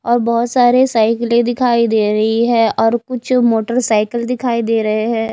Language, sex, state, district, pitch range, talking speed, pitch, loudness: Hindi, female, Odisha, Nuapada, 225-240 Hz, 170 wpm, 235 Hz, -14 LUFS